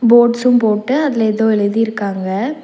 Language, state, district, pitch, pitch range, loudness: Tamil, Tamil Nadu, Nilgiris, 225 Hz, 210-245 Hz, -15 LUFS